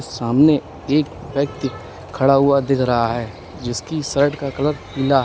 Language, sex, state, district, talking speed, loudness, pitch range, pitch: Hindi, male, Uttar Pradesh, Lalitpur, 160 wpm, -19 LUFS, 120-140 Hz, 135 Hz